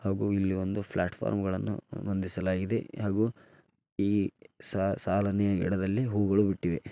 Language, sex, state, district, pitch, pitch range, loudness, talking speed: Kannada, male, Karnataka, Dharwad, 100 Hz, 95-100 Hz, -30 LUFS, 105 wpm